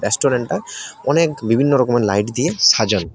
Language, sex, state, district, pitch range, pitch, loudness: Bengali, male, Tripura, West Tripura, 105-140 Hz, 120 Hz, -17 LUFS